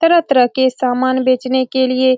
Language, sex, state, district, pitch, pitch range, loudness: Hindi, female, Bihar, Saran, 260 Hz, 255-260 Hz, -14 LUFS